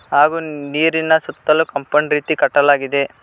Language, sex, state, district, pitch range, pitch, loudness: Kannada, male, Karnataka, Koppal, 145-160 Hz, 150 Hz, -16 LUFS